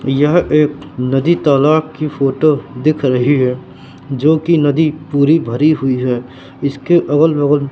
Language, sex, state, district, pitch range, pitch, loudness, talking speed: Hindi, male, Madhya Pradesh, Katni, 135-155 Hz, 145 Hz, -14 LUFS, 150 wpm